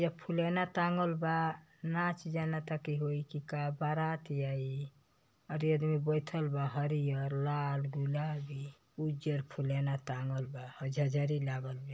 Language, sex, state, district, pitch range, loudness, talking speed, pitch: Bhojpuri, male, Uttar Pradesh, Ghazipur, 140-160 Hz, -36 LUFS, 135 wpm, 150 Hz